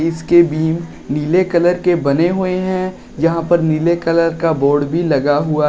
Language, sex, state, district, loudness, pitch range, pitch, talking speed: Hindi, male, Uttar Pradesh, Shamli, -15 LUFS, 155-175 Hz, 165 Hz, 180 wpm